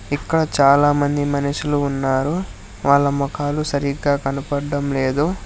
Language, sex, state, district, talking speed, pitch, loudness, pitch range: Telugu, male, Telangana, Hyderabad, 110 wpm, 140 Hz, -19 LUFS, 140-145 Hz